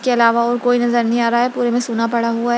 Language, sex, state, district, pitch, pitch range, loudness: Hindi, female, Bihar, Jahanabad, 240 Hz, 235-245 Hz, -16 LUFS